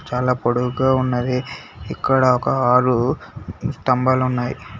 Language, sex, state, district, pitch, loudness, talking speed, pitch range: Telugu, male, Telangana, Hyderabad, 125 Hz, -19 LUFS, 115 wpm, 125-130 Hz